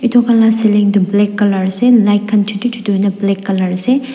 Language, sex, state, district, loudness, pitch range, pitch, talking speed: Nagamese, female, Nagaland, Dimapur, -13 LUFS, 200-230 Hz, 205 Hz, 230 wpm